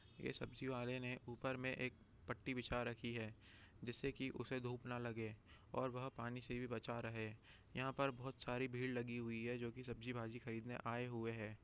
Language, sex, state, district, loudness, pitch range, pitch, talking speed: Hindi, male, Chhattisgarh, Raigarh, -47 LUFS, 115-125 Hz, 120 Hz, 205 wpm